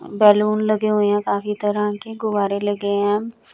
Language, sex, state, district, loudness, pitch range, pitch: Hindi, female, Chandigarh, Chandigarh, -19 LUFS, 205-215 Hz, 210 Hz